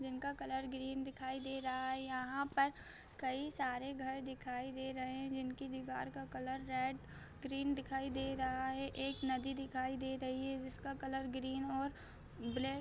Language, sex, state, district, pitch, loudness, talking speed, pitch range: Hindi, female, Bihar, Jahanabad, 265 Hz, -42 LUFS, 175 wpm, 260-270 Hz